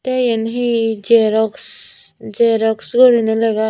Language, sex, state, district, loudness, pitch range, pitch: Chakma, female, Tripura, Dhalai, -15 LUFS, 220-240 Hz, 225 Hz